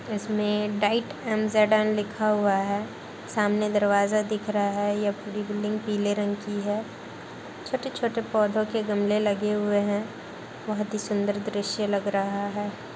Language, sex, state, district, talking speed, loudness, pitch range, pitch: Hindi, female, Uttar Pradesh, Muzaffarnagar, 150 wpm, -26 LUFS, 205-215 Hz, 210 Hz